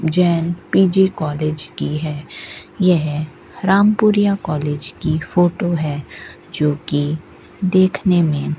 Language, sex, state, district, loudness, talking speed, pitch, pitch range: Hindi, female, Rajasthan, Bikaner, -18 LUFS, 105 wpm, 165 Hz, 150-185 Hz